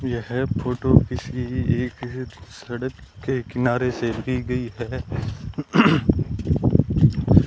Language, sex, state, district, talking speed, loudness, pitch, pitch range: Hindi, male, Rajasthan, Bikaner, 90 wpm, -22 LUFS, 125 Hz, 120-130 Hz